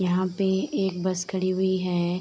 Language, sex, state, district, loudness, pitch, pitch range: Hindi, female, Bihar, Saharsa, -26 LUFS, 185 Hz, 180-190 Hz